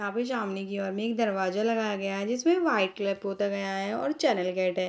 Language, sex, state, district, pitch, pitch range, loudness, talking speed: Hindi, female, Bihar, Sitamarhi, 200 Hz, 195-230 Hz, -28 LUFS, 270 wpm